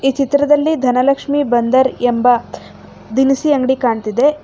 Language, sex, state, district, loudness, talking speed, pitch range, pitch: Kannada, female, Karnataka, Bangalore, -14 LUFS, 110 wpm, 245-285 Hz, 265 Hz